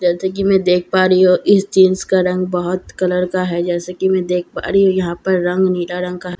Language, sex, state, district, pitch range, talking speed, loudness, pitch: Hindi, female, Bihar, Katihar, 180-190 Hz, 300 wpm, -16 LUFS, 185 Hz